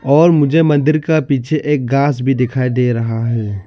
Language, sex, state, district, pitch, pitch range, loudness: Hindi, male, Arunachal Pradesh, Lower Dibang Valley, 140 Hz, 125-150 Hz, -14 LUFS